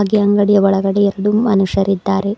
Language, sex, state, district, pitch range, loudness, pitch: Kannada, female, Karnataka, Bidar, 195-205 Hz, -14 LUFS, 200 Hz